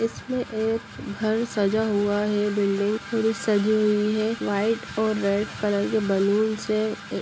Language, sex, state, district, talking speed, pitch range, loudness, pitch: Hindi, female, Bihar, Saran, 150 wpm, 205-220 Hz, -24 LUFS, 215 Hz